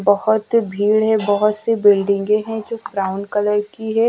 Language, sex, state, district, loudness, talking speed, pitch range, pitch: Hindi, female, Chhattisgarh, Raipur, -18 LUFS, 175 wpm, 205-220 Hz, 210 Hz